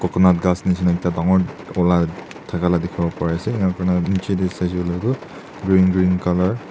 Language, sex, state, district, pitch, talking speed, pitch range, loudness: Nagamese, male, Nagaland, Dimapur, 90 Hz, 205 wpm, 90-95 Hz, -19 LUFS